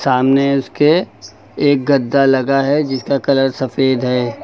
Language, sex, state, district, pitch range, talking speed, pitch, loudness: Hindi, male, Uttar Pradesh, Lucknow, 125-140 Hz, 135 wpm, 135 Hz, -15 LUFS